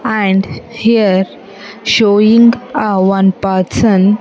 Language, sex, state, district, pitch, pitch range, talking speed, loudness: English, female, Andhra Pradesh, Sri Satya Sai, 205 Hz, 195-225 Hz, 100 wpm, -11 LUFS